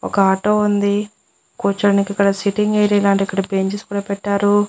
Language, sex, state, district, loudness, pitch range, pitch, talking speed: Telugu, female, Andhra Pradesh, Annamaya, -17 LUFS, 200-205 Hz, 200 Hz, 155 wpm